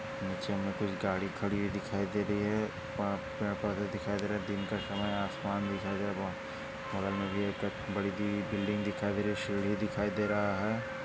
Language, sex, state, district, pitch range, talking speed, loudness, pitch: Hindi, male, Maharashtra, Dhule, 100-105 Hz, 220 wpm, -34 LUFS, 105 Hz